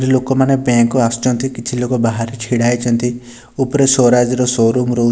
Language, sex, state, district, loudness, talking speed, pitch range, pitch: Odia, male, Odisha, Nuapada, -15 LUFS, 150 wpm, 120-130 Hz, 125 Hz